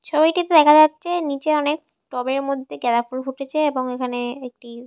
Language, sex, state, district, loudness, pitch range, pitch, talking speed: Bengali, female, West Bengal, Jhargram, -20 LUFS, 255-310 Hz, 275 Hz, 160 wpm